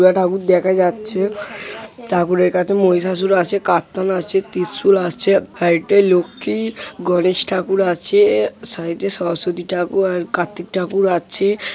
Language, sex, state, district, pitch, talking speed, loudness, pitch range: Bengali, male, West Bengal, Jhargram, 185 Hz, 135 wpm, -17 LUFS, 175-195 Hz